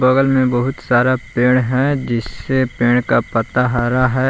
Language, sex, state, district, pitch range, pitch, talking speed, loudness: Hindi, male, Jharkhand, Palamu, 120-130 Hz, 125 Hz, 165 wpm, -16 LUFS